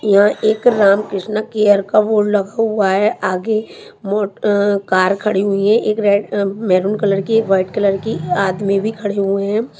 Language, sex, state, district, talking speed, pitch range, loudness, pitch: Hindi, female, Chhattisgarh, Raipur, 180 wpm, 195-215 Hz, -16 LUFS, 205 Hz